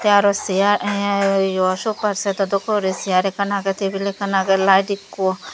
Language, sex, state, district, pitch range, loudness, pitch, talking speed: Chakma, female, Tripura, Dhalai, 190-200 Hz, -19 LUFS, 195 Hz, 185 wpm